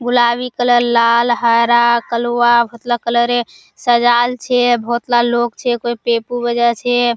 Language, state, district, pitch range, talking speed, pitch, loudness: Surjapuri, Bihar, Kishanganj, 235-240 Hz, 135 wpm, 240 Hz, -14 LUFS